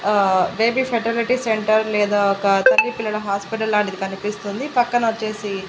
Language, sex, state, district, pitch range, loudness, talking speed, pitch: Telugu, female, Andhra Pradesh, Annamaya, 200-230 Hz, -19 LUFS, 125 wpm, 210 Hz